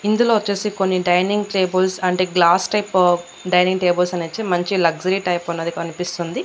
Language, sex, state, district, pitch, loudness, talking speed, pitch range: Telugu, female, Andhra Pradesh, Annamaya, 180 Hz, -19 LUFS, 150 wpm, 175-190 Hz